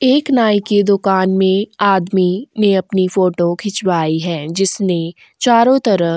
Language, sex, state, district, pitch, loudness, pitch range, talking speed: Hindi, female, Goa, North and South Goa, 195 Hz, -15 LUFS, 180-210 Hz, 145 wpm